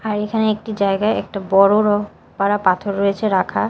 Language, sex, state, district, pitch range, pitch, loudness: Bengali, female, Odisha, Malkangiri, 195-215 Hz, 205 Hz, -18 LUFS